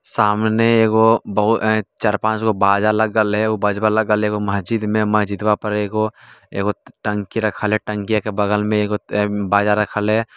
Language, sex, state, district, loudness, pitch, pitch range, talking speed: Hindi, male, Bihar, Jamui, -18 LUFS, 105 Hz, 105-110 Hz, 170 wpm